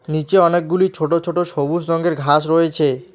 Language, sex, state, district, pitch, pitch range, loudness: Bengali, male, West Bengal, Alipurduar, 165 Hz, 155-175 Hz, -17 LUFS